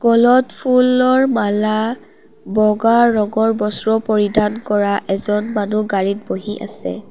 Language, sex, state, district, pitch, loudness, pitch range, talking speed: Assamese, female, Assam, Kamrup Metropolitan, 215 Hz, -16 LUFS, 210-235 Hz, 110 wpm